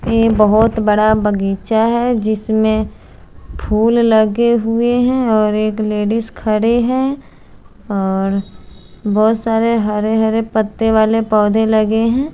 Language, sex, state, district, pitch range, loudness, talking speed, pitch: Hindi, female, Chandigarh, Chandigarh, 215-230 Hz, -15 LUFS, 120 wpm, 220 Hz